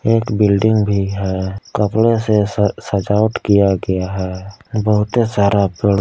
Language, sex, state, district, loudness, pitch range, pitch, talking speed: Hindi, male, Jharkhand, Palamu, -16 LUFS, 100-110 Hz, 105 Hz, 140 wpm